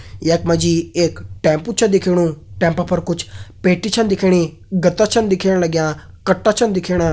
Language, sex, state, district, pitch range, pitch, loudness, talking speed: Hindi, male, Uttarakhand, Uttarkashi, 165-190 Hz, 175 Hz, -17 LUFS, 170 wpm